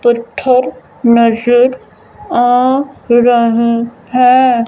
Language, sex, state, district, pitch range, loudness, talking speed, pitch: Hindi, female, Punjab, Fazilka, 235-255 Hz, -11 LUFS, 50 wpm, 245 Hz